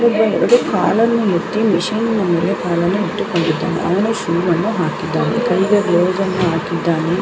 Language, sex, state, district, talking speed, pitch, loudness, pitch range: Kannada, female, Karnataka, Belgaum, 115 wpm, 185 Hz, -16 LUFS, 170-215 Hz